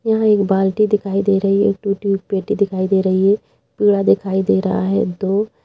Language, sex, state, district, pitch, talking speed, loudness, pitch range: Hindi, female, Uttar Pradesh, Jalaun, 195 Hz, 225 wpm, -17 LUFS, 190-205 Hz